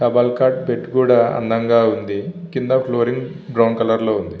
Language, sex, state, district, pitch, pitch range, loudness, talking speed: Telugu, male, Andhra Pradesh, Visakhapatnam, 120 Hz, 115-130 Hz, -18 LUFS, 165 wpm